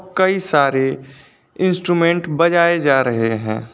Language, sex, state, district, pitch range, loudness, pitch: Hindi, male, Uttar Pradesh, Lucknow, 135-175 Hz, -16 LUFS, 155 Hz